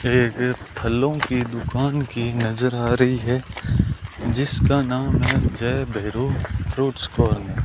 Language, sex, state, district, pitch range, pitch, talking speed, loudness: Hindi, male, Rajasthan, Bikaner, 115-130 Hz, 120 Hz, 140 wpm, -22 LUFS